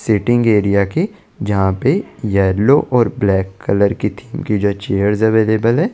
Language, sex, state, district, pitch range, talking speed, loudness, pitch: Hindi, male, Chandigarh, Chandigarh, 100-120 Hz, 160 wpm, -15 LUFS, 105 Hz